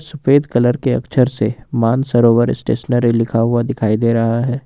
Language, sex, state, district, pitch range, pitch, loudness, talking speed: Hindi, male, Jharkhand, Ranchi, 115-130 Hz, 120 Hz, -15 LUFS, 180 wpm